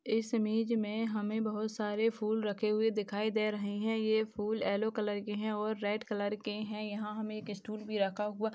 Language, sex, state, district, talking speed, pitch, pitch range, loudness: Hindi, female, Maharashtra, Aurangabad, 220 wpm, 215 Hz, 210-220 Hz, -34 LUFS